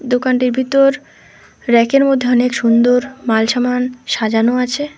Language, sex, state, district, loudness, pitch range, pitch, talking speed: Bengali, female, West Bengal, Alipurduar, -14 LUFS, 240-265 Hz, 250 Hz, 130 wpm